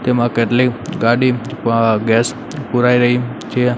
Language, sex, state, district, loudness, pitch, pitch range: Gujarati, male, Gujarat, Gandhinagar, -16 LUFS, 120 Hz, 115-125 Hz